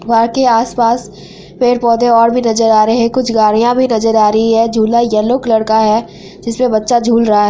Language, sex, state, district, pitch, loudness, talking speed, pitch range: Hindi, female, Bihar, Araria, 230 Hz, -11 LUFS, 215 wpm, 220-235 Hz